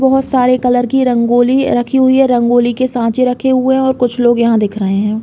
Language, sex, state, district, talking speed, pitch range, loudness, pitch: Hindi, female, Uttar Pradesh, Hamirpur, 230 wpm, 240-260 Hz, -12 LUFS, 245 Hz